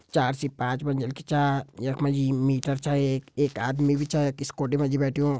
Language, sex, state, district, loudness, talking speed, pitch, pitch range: Garhwali, male, Uttarakhand, Tehri Garhwal, -26 LUFS, 235 wpm, 140 Hz, 135-145 Hz